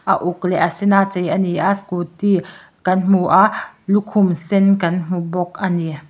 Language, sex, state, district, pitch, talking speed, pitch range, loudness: Mizo, male, Mizoram, Aizawl, 185 Hz, 205 wpm, 175-195 Hz, -17 LUFS